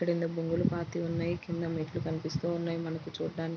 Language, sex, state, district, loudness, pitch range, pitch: Telugu, female, Andhra Pradesh, Guntur, -33 LUFS, 165-170 Hz, 165 Hz